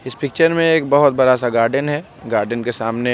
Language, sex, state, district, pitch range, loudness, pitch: Hindi, male, Bihar, Begusarai, 120-145 Hz, -17 LUFS, 135 Hz